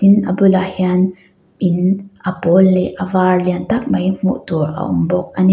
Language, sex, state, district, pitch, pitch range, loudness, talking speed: Mizo, female, Mizoram, Aizawl, 185 Hz, 180-190 Hz, -16 LUFS, 215 wpm